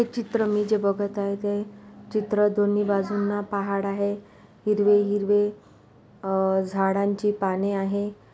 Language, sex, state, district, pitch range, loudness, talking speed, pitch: Marathi, male, Maharashtra, Pune, 200-205 Hz, -24 LUFS, 130 wpm, 205 Hz